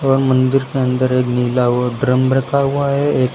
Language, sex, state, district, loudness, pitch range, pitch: Hindi, male, Uttar Pradesh, Lucknow, -16 LUFS, 125-135 Hz, 130 Hz